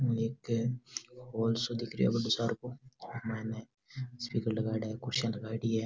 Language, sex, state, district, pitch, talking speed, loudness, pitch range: Rajasthani, male, Rajasthan, Nagaur, 115 Hz, 185 wpm, -35 LUFS, 110-125 Hz